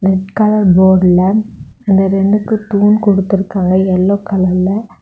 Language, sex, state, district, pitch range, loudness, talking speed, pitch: Tamil, female, Tamil Nadu, Kanyakumari, 190-210 Hz, -12 LUFS, 120 wpm, 195 Hz